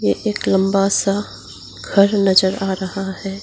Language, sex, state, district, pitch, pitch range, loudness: Hindi, female, Arunachal Pradesh, Lower Dibang Valley, 195 Hz, 190-195 Hz, -17 LUFS